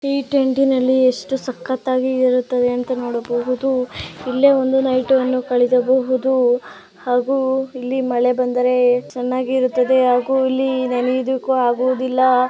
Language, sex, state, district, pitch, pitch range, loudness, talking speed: Kannada, female, Karnataka, Chamarajanagar, 255 Hz, 250-260 Hz, -18 LUFS, 110 wpm